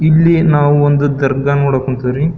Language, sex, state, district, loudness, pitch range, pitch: Kannada, male, Karnataka, Belgaum, -12 LUFS, 135-155 Hz, 145 Hz